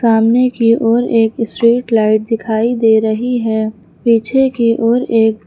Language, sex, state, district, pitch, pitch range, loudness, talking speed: Hindi, female, Uttar Pradesh, Lucknow, 230 Hz, 220-240 Hz, -13 LUFS, 155 wpm